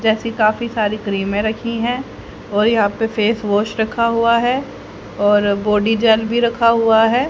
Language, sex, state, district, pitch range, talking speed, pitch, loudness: Hindi, female, Haryana, Charkhi Dadri, 210-235 Hz, 190 wpm, 225 Hz, -17 LUFS